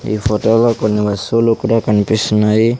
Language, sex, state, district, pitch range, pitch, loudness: Telugu, male, Andhra Pradesh, Sri Satya Sai, 105-115 Hz, 110 Hz, -14 LUFS